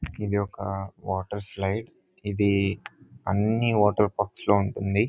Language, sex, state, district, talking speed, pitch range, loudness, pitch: Telugu, male, Andhra Pradesh, Anantapur, 130 wpm, 100-105 Hz, -26 LUFS, 100 Hz